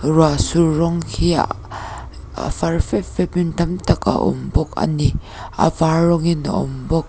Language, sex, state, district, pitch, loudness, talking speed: Mizo, female, Mizoram, Aizawl, 160 Hz, -19 LUFS, 185 wpm